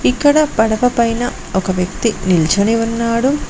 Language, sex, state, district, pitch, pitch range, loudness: Telugu, female, Telangana, Mahabubabad, 230 Hz, 190-245 Hz, -15 LUFS